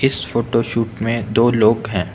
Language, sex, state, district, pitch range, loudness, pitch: Hindi, male, Arunachal Pradesh, Lower Dibang Valley, 110-115 Hz, -18 LUFS, 115 Hz